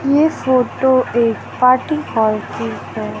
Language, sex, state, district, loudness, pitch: Hindi, male, Madhya Pradesh, Katni, -16 LUFS, 245 Hz